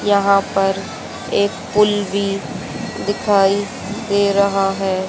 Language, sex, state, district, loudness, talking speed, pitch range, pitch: Hindi, female, Haryana, Jhajjar, -18 LUFS, 105 wpm, 195-205 Hz, 200 Hz